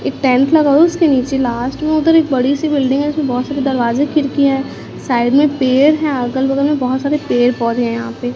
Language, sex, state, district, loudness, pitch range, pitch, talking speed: Hindi, female, Chhattisgarh, Raipur, -14 LUFS, 250-295 Hz, 275 Hz, 250 wpm